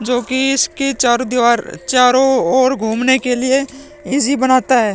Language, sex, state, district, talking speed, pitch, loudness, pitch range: Hindi, male, Bihar, Vaishali, 160 wpm, 260 Hz, -14 LUFS, 245-270 Hz